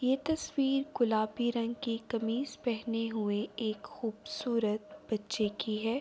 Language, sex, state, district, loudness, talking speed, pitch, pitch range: Urdu, female, Andhra Pradesh, Anantapur, -34 LUFS, 130 wpm, 230 Hz, 215-255 Hz